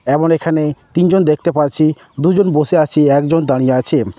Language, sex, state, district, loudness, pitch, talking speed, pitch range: Bengali, male, West Bengal, Jhargram, -14 LUFS, 150 Hz, 160 wpm, 140-165 Hz